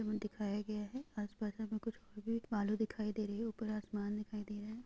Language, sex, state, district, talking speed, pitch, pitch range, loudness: Hindi, female, Jharkhand, Jamtara, 235 wpm, 215 Hz, 210-220 Hz, -41 LUFS